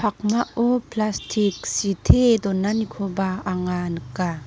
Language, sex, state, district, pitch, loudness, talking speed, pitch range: Garo, female, Meghalaya, North Garo Hills, 200 Hz, -22 LUFS, 80 wpm, 185-220 Hz